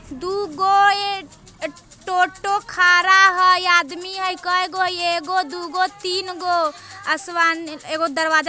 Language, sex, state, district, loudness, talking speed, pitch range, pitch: Bajjika, female, Bihar, Vaishali, -18 LUFS, 105 wpm, 340-380 Hz, 365 Hz